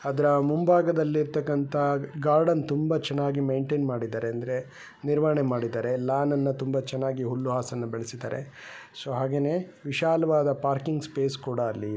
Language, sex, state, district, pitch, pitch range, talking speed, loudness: Kannada, male, Karnataka, Bellary, 140 Hz, 125-150 Hz, 105 wpm, -27 LUFS